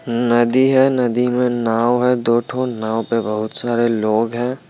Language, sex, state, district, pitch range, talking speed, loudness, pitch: Hindi, male, Bihar, Muzaffarpur, 115-125 Hz, 165 wpm, -17 LUFS, 120 Hz